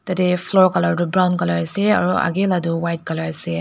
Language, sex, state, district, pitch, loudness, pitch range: Nagamese, female, Nagaland, Dimapur, 180 Hz, -18 LUFS, 165-185 Hz